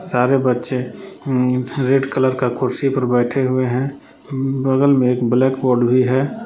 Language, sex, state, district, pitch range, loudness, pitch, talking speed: Hindi, male, Jharkhand, Palamu, 125-135 Hz, -17 LUFS, 130 Hz, 185 wpm